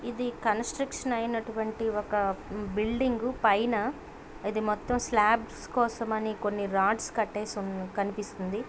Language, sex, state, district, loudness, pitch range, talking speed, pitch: Telugu, female, Andhra Pradesh, Krishna, -30 LUFS, 205-235 Hz, 95 wpm, 220 Hz